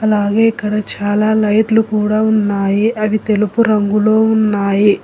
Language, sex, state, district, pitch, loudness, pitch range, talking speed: Telugu, female, Telangana, Hyderabad, 215 Hz, -14 LUFS, 210-220 Hz, 120 wpm